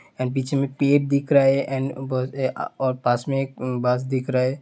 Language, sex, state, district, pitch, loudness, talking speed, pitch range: Hindi, male, Uttar Pradesh, Hamirpur, 135 Hz, -22 LUFS, 210 wpm, 130-135 Hz